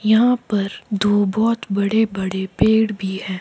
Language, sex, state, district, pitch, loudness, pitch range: Hindi, male, Himachal Pradesh, Shimla, 205 Hz, -19 LUFS, 195-220 Hz